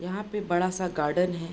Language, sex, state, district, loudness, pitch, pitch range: Hindi, female, Bihar, Darbhanga, -28 LUFS, 180 Hz, 175-185 Hz